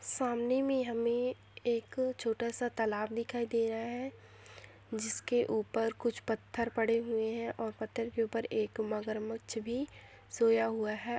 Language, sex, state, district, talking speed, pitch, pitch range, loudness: Hindi, female, Bihar, Saran, 150 wpm, 230 Hz, 225-240 Hz, -35 LUFS